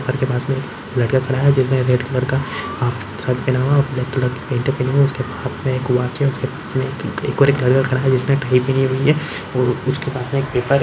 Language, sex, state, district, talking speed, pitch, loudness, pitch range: Hindi, male, Chhattisgarh, Rajnandgaon, 285 wpm, 130 Hz, -18 LUFS, 125-135 Hz